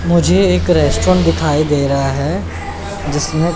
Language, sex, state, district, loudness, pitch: Hindi, male, Chandigarh, Chandigarh, -15 LUFS, 140 Hz